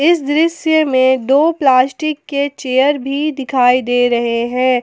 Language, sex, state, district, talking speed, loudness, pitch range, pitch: Hindi, female, Jharkhand, Palamu, 135 wpm, -14 LUFS, 255-305 Hz, 270 Hz